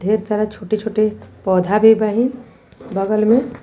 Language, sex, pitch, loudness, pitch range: Sadri, female, 215 Hz, -17 LUFS, 210-225 Hz